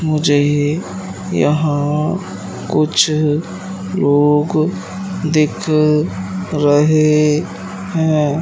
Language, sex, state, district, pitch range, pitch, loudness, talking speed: Hindi, male, Madhya Pradesh, Katni, 145-155 Hz, 150 Hz, -16 LUFS, 55 wpm